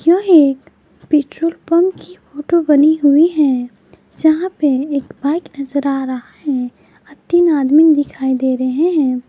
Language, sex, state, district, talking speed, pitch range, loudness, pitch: Hindi, female, Jharkhand, Garhwa, 160 wpm, 270-330 Hz, -15 LUFS, 295 Hz